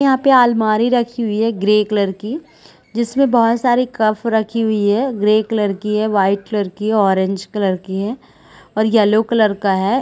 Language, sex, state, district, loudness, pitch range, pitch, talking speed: Hindi, female, Chhattisgarh, Balrampur, -16 LUFS, 205-235 Hz, 215 Hz, 205 wpm